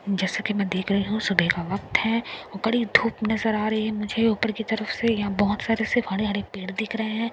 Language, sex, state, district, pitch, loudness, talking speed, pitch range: Hindi, female, Bihar, Katihar, 215 Hz, -24 LUFS, 255 wpm, 200-225 Hz